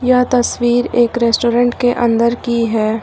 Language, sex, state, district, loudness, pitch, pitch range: Hindi, female, Uttar Pradesh, Lucknow, -14 LUFS, 240 Hz, 235-245 Hz